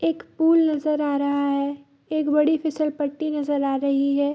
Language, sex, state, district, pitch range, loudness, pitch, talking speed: Hindi, female, Bihar, Bhagalpur, 280-305 Hz, -22 LUFS, 290 Hz, 195 wpm